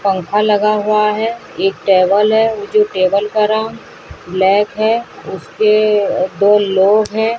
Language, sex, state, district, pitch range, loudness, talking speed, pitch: Hindi, female, Odisha, Sambalpur, 200-215 Hz, -14 LUFS, 145 wpm, 210 Hz